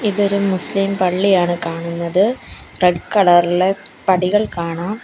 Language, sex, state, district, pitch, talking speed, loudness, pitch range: Malayalam, female, Kerala, Kollam, 185 Hz, 95 wpm, -17 LUFS, 175-200 Hz